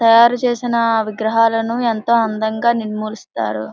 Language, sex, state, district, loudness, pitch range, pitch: Telugu, female, Andhra Pradesh, Srikakulam, -17 LUFS, 220-235 Hz, 225 Hz